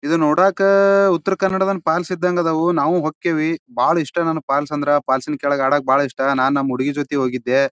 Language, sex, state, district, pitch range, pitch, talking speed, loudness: Kannada, male, Karnataka, Bijapur, 140-180 Hz, 155 Hz, 195 wpm, -18 LUFS